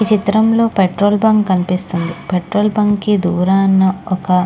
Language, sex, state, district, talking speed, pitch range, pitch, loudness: Telugu, female, Andhra Pradesh, Krishna, 135 wpm, 185-210 Hz, 195 Hz, -14 LUFS